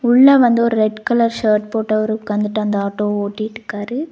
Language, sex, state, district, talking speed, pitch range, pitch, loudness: Tamil, female, Tamil Nadu, Nilgiris, 160 wpm, 210-235 Hz, 215 Hz, -17 LUFS